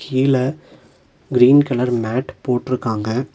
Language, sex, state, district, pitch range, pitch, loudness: Tamil, male, Tamil Nadu, Nilgiris, 125-130 Hz, 125 Hz, -18 LUFS